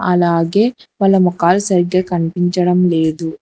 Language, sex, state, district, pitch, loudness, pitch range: Telugu, female, Telangana, Hyderabad, 180 Hz, -15 LUFS, 170-185 Hz